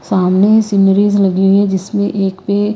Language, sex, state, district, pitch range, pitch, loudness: Hindi, female, Haryana, Rohtak, 190-205 Hz, 200 Hz, -12 LUFS